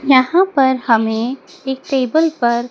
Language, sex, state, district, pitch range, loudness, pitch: Hindi, female, Madhya Pradesh, Dhar, 240-280 Hz, -16 LUFS, 265 Hz